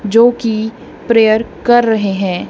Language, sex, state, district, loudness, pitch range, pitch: Hindi, female, Punjab, Kapurthala, -13 LUFS, 215-230 Hz, 225 Hz